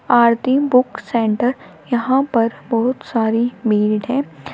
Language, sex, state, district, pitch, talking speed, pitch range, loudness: Hindi, female, Uttar Pradesh, Shamli, 240 Hz, 120 wpm, 225-255 Hz, -17 LUFS